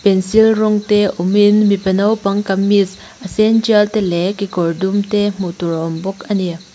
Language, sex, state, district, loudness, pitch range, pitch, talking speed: Mizo, female, Mizoram, Aizawl, -15 LUFS, 185-210 Hz, 200 Hz, 185 wpm